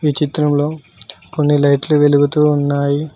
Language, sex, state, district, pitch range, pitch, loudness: Telugu, male, Telangana, Mahabubabad, 145-150 Hz, 145 Hz, -15 LUFS